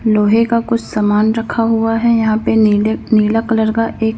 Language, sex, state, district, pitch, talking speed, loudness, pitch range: Hindi, female, Madhya Pradesh, Bhopal, 225 Hz, 200 wpm, -14 LUFS, 215-225 Hz